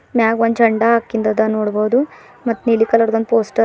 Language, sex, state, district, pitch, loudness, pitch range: Kannada, female, Karnataka, Bidar, 230 Hz, -16 LUFS, 220-230 Hz